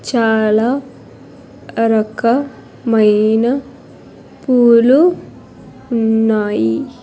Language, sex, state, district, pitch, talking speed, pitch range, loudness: Telugu, female, Andhra Pradesh, Sri Satya Sai, 230 Hz, 45 wpm, 220-255 Hz, -14 LUFS